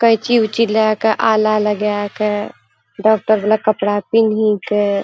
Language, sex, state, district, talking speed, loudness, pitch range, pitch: Angika, female, Bihar, Purnia, 145 wpm, -16 LUFS, 205-220 Hz, 215 Hz